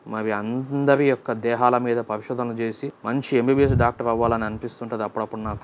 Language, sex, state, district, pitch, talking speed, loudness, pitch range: Telugu, male, Andhra Pradesh, Guntur, 120 Hz, 160 wpm, -23 LUFS, 110-125 Hz